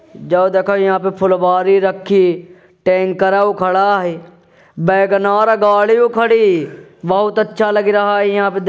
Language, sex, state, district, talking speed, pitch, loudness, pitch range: Hindi, male, Uttar Pradesh, Jyotiba Phule Nagar, 130 wpm, 195 Hz, -14 LUFS, 185-205 Hz